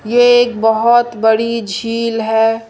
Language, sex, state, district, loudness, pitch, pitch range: Hindi, female, Madhya Pradesh, Umaria, -13 LUFS, 230 Hz, 225-235 Hz